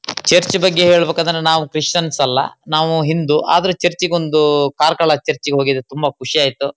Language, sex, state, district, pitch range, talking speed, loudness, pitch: Kannada, male, Karnataka, Shimoga, 145-170 Hz, 140 wpm, -15 LUFS, 155 Hz